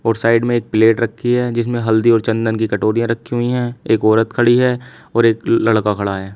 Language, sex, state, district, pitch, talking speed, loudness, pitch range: Hindi, male, Uttar Pradesh, Shamli, 115 Hz, 235 wpm, -16 LUFS, 110-120 Hz